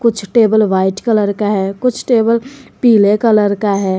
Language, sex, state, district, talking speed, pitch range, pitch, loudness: Hindi, female, Jharkhand, Garhwa, 180 wpm, 200-230 Hz, 215 Hz, -13 LUFS